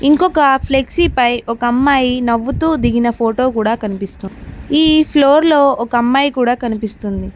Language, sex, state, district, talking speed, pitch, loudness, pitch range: Telugu, female, Telangana, Mahabubabad, 140 wpm, 250 Hz, -14 LUFS, 230-285 Hz